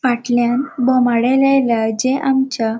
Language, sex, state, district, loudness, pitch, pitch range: Konkani, female, Goa, North and South Goa, -16 LUFS, 250 Hz, 235-265 Hz